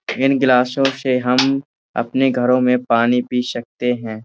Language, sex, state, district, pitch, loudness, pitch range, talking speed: Hindi, male, Uttar Pradesh, Budaun, 125 Hz, -17 LUFS, 125-135 Hz, 155 wpm